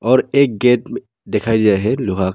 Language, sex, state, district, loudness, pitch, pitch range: Hindi, male, Arunachal Pradesh, Lower Dibang Valley, -16 LUFS, 110 Hz, 105-125 Hz